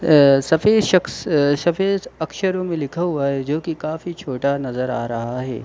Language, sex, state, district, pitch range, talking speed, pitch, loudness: Hindi, male, Jharkhand, Sahebganj, 135-175 Hz, 180 wpm, 155 Hz, -20 LUFS